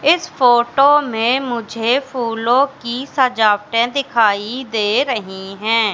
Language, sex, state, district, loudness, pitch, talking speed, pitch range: Hindi, female, Madhya Pradesh, Katni, -16 LUFS, 240 Hz, 110 wpm, 225-265 Hz